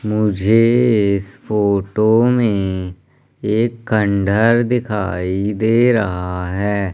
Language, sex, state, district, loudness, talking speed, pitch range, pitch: Hindi, male, Madhya Pradesh, Umaria, -16 LUFS, 85 wpm, 100-115 Hz, 105 Hz